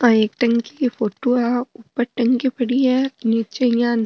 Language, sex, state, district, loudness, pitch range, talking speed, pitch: Marwari, female, Rajasthan, Nagaur, -20 LUFS, 235-255 Hz, 190 wpm, 240 Hz